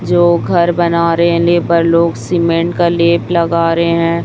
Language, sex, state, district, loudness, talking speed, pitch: Hindi, female, Chhattisgarh, Raipur, -12 LUFS, 185 wpm, 170 Hz